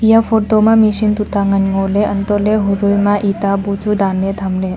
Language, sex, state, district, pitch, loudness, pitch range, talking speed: Wancho, female, Arunachal Pradesh, Longding, 200 Hz, -14 LUFS, 195-210 Hz, 265 wpm